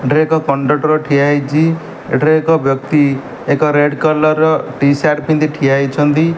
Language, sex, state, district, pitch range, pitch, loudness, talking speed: Odia, male, Odisha, Malkangiri, 140-155 Hz, 150 Hz, -13 LUFS, 140 wpm